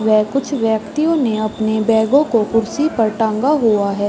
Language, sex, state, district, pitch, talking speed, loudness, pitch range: Hindi, female, Uttar Pradesh, Varanasi, 225 Hz, 175 wpm, -16 LUFS, 215-275 Hz